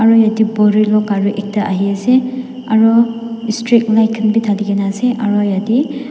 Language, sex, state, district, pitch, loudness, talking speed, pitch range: Nagamese, female, Nagaland, Dimapur, 220 Hz, -14 LUFS, 155 wpm, 210-230 Hz